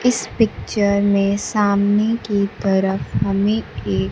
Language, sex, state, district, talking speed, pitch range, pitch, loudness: Hindi, female, Bihar, Kaimur, 115 wpm, 195-210 Hz, 200 Hz, -19 LUFS